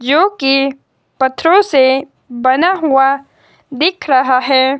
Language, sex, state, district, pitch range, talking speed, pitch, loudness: Hindi, female, Himachal Pradesh, Shimla, 265-310 Hz, 100 wpm, 270 Hz, -13 LUFS